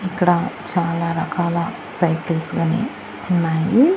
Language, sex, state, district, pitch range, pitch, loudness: Telugu, female, Andhra Pradesh, Annamaya, 165-180 Hz, 175 Hz, -20 LUFS